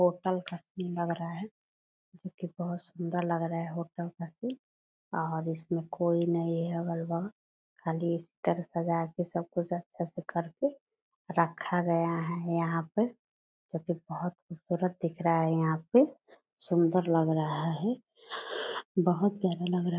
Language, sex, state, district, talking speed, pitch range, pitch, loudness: Hindi, female, Bihar, Purnia, 160 wpm, 170-180 Hz, 175 Hz, -32 LUFS